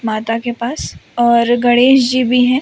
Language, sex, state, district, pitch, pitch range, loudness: Hindi, female, Madhya Pradesh, Umaria, 240 Hz, 235-250 Hz, -13 LUFS